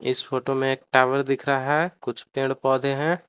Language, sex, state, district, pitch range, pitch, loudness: Hindi, male, Jharkhand, Palamu, 135-140 Hz, 135 Hz, -23 LUFS